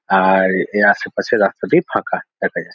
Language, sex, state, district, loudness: Bengali, male, West Bengal, Jhargram, -16 LUFS